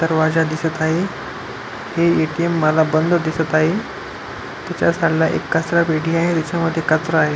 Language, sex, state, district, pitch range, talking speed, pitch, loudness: Marathi, male, Maharashtra, Pune, 160-170 Hz, 155 wpm, 160 Hz, -18 LUFS